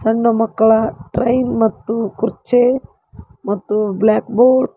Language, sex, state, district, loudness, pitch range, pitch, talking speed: Kannada, female, Karnataka, Koppal, -16 LUFS, 215-240 Hz, 225 Hz, 115 wpm